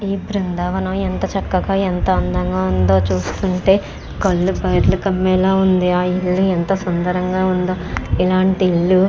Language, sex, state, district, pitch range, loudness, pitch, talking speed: Telugu, female, Andhra Pradesh, Chittoor, 180-190 Hz, -17 LUFS, 185 Hz, 130 wpm